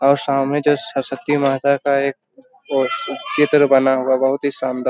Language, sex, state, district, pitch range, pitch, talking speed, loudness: Hindi, male, Bihar, Jamui, 135-145 Hz, 140 Hz, 185 wpm, -18 LUFS